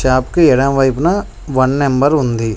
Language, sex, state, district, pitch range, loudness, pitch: Telugu, male, Telangana, Mahabubabad, 130-150 Hz, -14 LUFS, 135 Hz